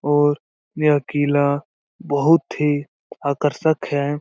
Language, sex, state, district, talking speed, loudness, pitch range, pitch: Hindi, male, Bihar, Lakhisarai, 100 wpm, -20 LUFS, 145-150 Hz, 145 Hz